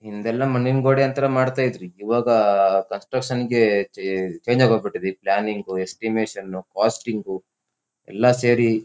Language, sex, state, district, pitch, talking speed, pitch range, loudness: Kannada, male, Karnataka, Shimoga, 115 Hz, 115 wpm, 100-125 Hz, -21 LUFS